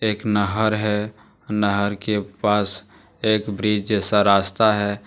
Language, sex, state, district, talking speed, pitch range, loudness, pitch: Hindi, male, Jharkhand, Deoghar, 130 wpm, 100-105 Hz, -20 LUFS, 105 Hz